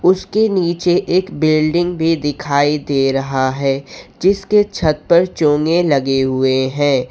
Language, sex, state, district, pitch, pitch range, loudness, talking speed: Hindi, male, Jharkhand, Ranchi, 155 Hz, 135-175 Hz, -16 LUFS, 135 wpm